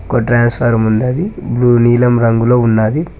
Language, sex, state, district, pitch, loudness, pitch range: Telugu, male, Telangana, Mahabubabad, 120 Hz, -12 LUFS, 115-125 Hz